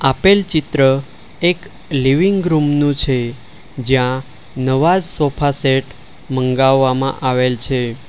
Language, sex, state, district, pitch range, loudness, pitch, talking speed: Gujarati, male, Gujarat, Valsad, 130-150 Hz, -16 LUFS, 135 Hz, 105 wpm